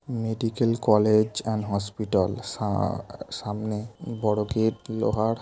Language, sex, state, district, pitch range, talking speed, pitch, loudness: Bengali, male, West Bengal, Kolkata, 105-115 Hz, 110 wpm, 110 Hz, -26 LUFS